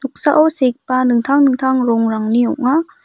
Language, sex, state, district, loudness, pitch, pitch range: Garo, female, Meghalaya, West Garo Hills, -15 LUFS, 260 Hz, 240-280 Hz